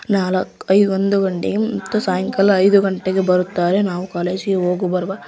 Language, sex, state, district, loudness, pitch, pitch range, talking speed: Kannada, female, Karnataka, Raichur, -18 LUFS, 190 Hz, 185-200 Hz, 125 wpm